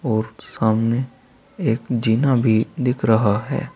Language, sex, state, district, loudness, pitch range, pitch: Hindi, male, Uttar Pradesh, Saharanpur, -20 LUFS, 110-130 Hz, 115 Hz